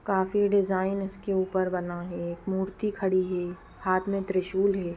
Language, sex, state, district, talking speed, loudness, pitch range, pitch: Hindi, female, Bihar, Gopalganj, 170 wpm, -28 LUFS, 185-195 Hz, 190 Hz